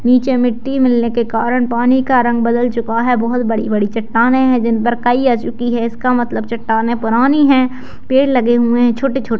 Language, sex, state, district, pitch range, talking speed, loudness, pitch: Hindi, male, Bihar, Saharsa, 235-255 Hz, 190 wpm, -14 LUFS, 240 Hz